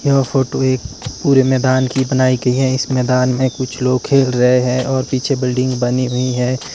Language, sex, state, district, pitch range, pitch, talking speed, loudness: Hindi, male, Himachal Pradesh, Shimla, 125-130 Hz, 130 Hz, 205 wpm, -16 LUFS